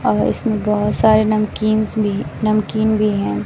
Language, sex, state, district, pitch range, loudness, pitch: Hindi, female, Bihar, West Champaran, 210-215 Hz, -17 LUFS, 215 Hz